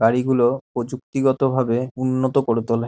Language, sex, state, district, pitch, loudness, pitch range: Bengali, male, West Bengal, Dakshin Dinajpur, 130 Hz, -21 LUFS, 120-130 Hz